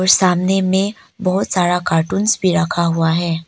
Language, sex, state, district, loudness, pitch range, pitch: Hindi, female, Arunachal Pradesh, Papum Pare, -16 LUFS, 170-190 Hz, 185 Hz